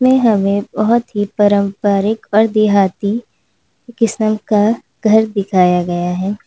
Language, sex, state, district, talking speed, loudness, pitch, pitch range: Hindi, female, Uttar Pradesh, Lalitpur, 110 wpm, -15 LUFS, 210 Hz, 200-220 Hz